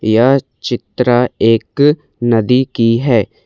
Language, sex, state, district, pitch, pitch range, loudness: Hindi, male, Assam, Kamrup Metropolitan, 120 Hz, 115-130 Hz, -13 LUFS